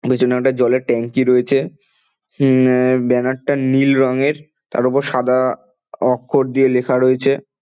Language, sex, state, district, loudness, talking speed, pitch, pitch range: Bengali, male, West Bengal, Dakshin Dinajpur, -16 LUFS, 140 wpm, 130 Hz, 125-135 Hz